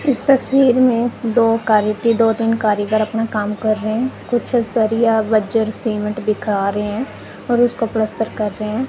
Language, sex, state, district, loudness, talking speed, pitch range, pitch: Hindi, female, Punjab, Kapurthala, -17 LUFS, 180 wpm, 215-240 Hz, 225 Hz